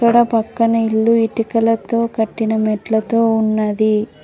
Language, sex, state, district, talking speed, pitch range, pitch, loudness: Telugu, female, Telangana, Mahabubabad, 85 wpm, 220-230 Hz, 225 Hz, -16 LUFS